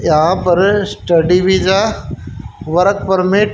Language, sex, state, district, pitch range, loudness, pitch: Hindi, female, Haryana, Charkhi Dadri, 160-195 Hz, -13 LUFS, 185 Hz